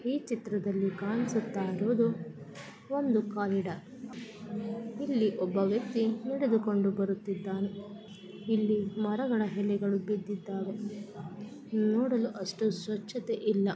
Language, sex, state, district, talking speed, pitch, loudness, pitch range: Kannada, female, Karnataka, Belgaum, 80 wpm, 210 Hz, -32 LUFS, 200-230 Hz